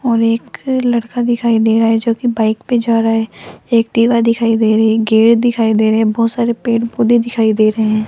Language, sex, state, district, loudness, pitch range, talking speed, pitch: Hindi, female, Rajasthan, Jaipur, -13 LUFS, 220-235 Hz, 230 wpm, 230 Hz